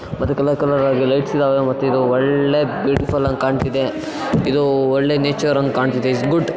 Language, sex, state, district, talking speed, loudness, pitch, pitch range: Kannada, male, Karnataka, Chamarajanagar, 175 wpm, -17 LUFS, 135 Hz, 135-145 Hz